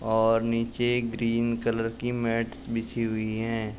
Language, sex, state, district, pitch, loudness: Hindi, male, Uttar Pradesh, Jalaun, 115 Hz, -27 LUFS